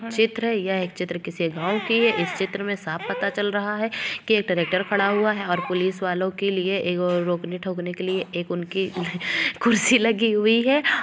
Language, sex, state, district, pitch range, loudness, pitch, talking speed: Hindi, female, Uttar Pradesh, Ghazipur, 180-215 Hz, -23 LUFS, 190 Hz, 205 wpm